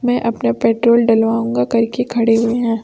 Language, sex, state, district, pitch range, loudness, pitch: Hindi, female, Chhattisgarh, Raipur, 225-235 Hz, -15 LUFS, 230 Hz